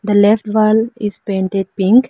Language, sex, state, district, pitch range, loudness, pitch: English, female, Arunachal Pradesh, Lower Dibang Valley, 195-220 Hz, -15 LUFS, 210 Hz